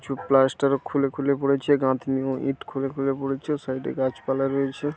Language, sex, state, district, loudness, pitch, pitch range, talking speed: Bengali, male, West Bengal, Paschim Medinipur, -24 LUFS, 135 Hz, 135-140 Hz, 195 wpm